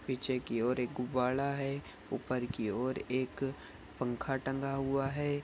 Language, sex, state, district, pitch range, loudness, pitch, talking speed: Hindi, male, Bihar, Saharsa, 125-135 Hz, -35 LUFS, 130 Hz, 155 wpm